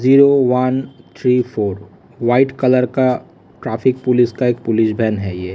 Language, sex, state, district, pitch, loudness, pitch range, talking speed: Hindi, male, Delhi, New Delhi, 125 Hz, -16 LUFS, 110-130 Hz, 175 wpm